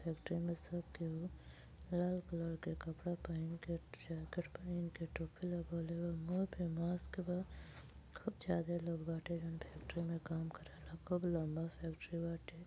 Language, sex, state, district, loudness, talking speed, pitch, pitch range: Bhojpuri, female, Uttar Pradesh, Gorakhpur, -44 LUFS, 160 wpm, 170 Hz, 165-175 Hz